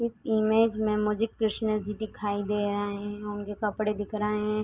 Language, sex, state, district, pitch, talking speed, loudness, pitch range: Hindi, female, Uttar Pradesh, Etah, 210 Hz, 205 wpm, -28 LUFS, 205-215 Hz